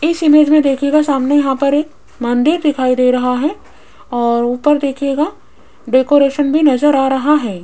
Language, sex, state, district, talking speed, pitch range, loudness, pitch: Hindi, female, Rajasthan, Jaipur, 175 wpm, 255-300 Hz, -14 LUFS, 280 Hz